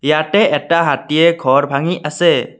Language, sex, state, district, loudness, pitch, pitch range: Assamese, male, Assam, Kamrup Metropolitan, -14 LUFS, 155 Hz, 145-170 Hz